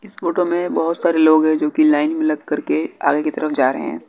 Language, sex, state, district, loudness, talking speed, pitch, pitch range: Hindi, male, Bihar, West Champaran, -18 LUFS, 295 wpm, 155 Hz, 150-170 Hz